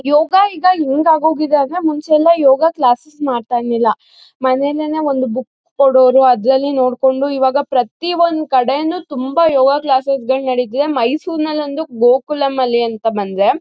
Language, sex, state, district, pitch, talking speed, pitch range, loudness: Kannada, female, Karnataka, Mysore, 275 Hz, 135 wpm, 255-310 Hz, -14 LUFS